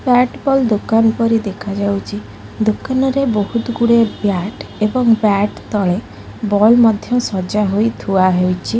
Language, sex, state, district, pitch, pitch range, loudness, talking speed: Odia, female, Odisha, Khordha, 215 Hz, 200-235 Hz, -15 LUFS, 130 wpm